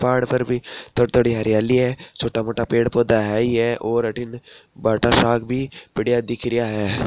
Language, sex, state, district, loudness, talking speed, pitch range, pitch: Marwari, male, Rajasthan, Nagaur, -20 LUFS, 160 wpm, 115-125 Hz, 120 Hz